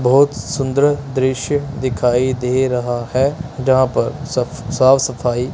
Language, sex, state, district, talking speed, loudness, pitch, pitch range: Hindi, male, Punjab, Kapurthala, 130 wpm, -17 LUFS, 130 Hz, 125-140 Hz